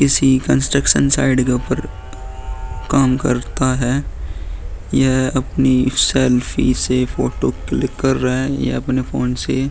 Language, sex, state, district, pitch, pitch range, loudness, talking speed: Hindi, male, Uttar Pradesh, Muzaffarnagar, 130 Hz, 100-135 Hz, -17 LUFS, 135 wpm